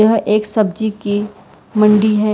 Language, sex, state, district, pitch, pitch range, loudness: Hindi, female, Karnataka, Bangalore, 215 Hz, 210-215 Hz, -15 LUFS